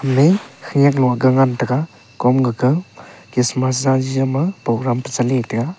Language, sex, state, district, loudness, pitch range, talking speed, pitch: Wancho, male, Arunachal Pradesh, Longding, -17 LUFS, 125-135 Hz, 155 wpm, 130 Hz